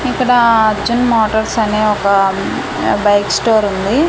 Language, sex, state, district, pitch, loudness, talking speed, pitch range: Telugu, female, Andhra Pradesh, Manyam, 220 Hz, -13 LUFS, 130 wpm, 205-235 Hz